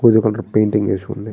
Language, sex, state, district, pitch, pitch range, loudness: Telugu, male, Andhra Pradesh, Srikakulam, 110 Hz, 105-110 Hz, -17 LUFS